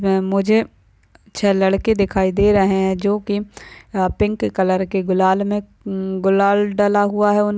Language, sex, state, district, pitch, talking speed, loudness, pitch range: Hindi, female, Maharashtra, Pune, 200 Hz, 160 wpm, -18 LUFS, 190-205 Hz